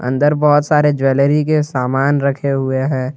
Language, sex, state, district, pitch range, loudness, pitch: Hindi, male, Jharkhand, Garhwa, 135-150 Hz, -15 LUFS, 140 Hz